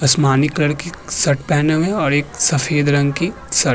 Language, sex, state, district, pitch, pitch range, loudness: Hindi, male, Uttar Pradesh, Hamirpur, 145 Hz, 145-160 Hz, -17 LUFS